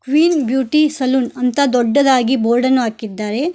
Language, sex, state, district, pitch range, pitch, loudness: Kannada, female, Karnataka, Koppal, 245-280 Hz, 260 Hz, -15 LUFS